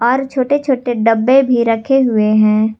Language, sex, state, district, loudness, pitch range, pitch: Hindi, female, Jharkhand, Garhwa, -13 LUFS, 220-265 Hz, 240 Hz